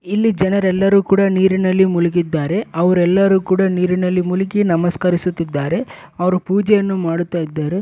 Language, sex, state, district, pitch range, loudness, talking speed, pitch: Kannada, male, Karnataka, Bellary, 175-195 Hz, -16 LUFS, 105 wpm, 185 Hz